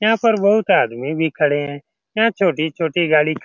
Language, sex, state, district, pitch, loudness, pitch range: Hindi, male, Bihar, Saran, 160 Hz, -17 LUFS, 150-205 Hz